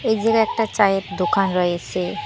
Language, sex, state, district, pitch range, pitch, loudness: Bengali, female, West Bengal, Cooch Behar, 180-225 Hz, 200 Hz, -20 LUFS